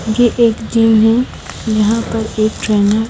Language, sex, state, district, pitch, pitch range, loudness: Hindi, female, Bihar, Kaimur, 220 Hz, 220-230 Hz, -14 LUFS